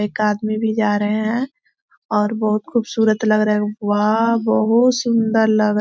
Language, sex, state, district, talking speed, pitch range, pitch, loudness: Hindi, female, Chhattisgarh, Korba, 175 wpm, 210-225 Hz, 215 Hz, -18 LUFS